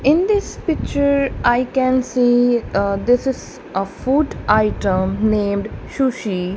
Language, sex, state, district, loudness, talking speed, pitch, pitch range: English, female, Punjab, Kapurthala, -18 LUFS, 130 wpm, 245 Hz, 200-265 Hz